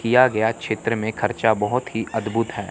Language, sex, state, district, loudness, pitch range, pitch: Hindi, male, Chandigarh, Chandigarh, -22 LUFS, 110-115 Hz, 110 Hz